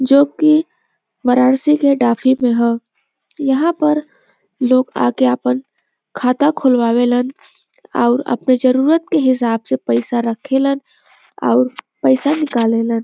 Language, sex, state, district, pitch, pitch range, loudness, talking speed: Bhojpuri, female, Uttar Pradesh, Varanasi, 260 Hz, 240-285 Hz, -15 LUFS, 115 wpm